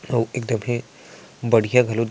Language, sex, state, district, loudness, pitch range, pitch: Chhattisgarhi, male, Chhattisgarh, Sarguja, -21 LUFS, 115-125 Hz, 120 Hz